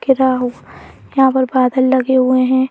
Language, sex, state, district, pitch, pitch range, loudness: Hindi, female, Madhya Pradesh, Bhopal, 260 Hz, 255-265 Hz, -14 LUFS